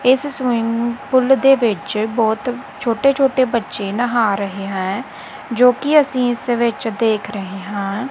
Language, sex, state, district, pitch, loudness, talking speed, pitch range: Punjabi, female, Punjab, Kapurthala, 235 Hz, -18 LUFS, 150 wpm, 210-255 Hz